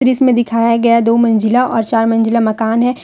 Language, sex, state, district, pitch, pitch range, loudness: Hindi, female, Jharkhand, Deoghar, 230 Hz, 225-240 Hz, -13 LUFS